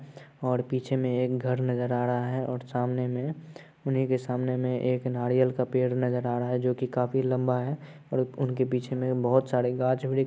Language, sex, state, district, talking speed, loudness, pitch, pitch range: Hindi, male, Bihar, Purnia, 210 wpm, -28 LUFS, 125 Hz, 125-130 Hz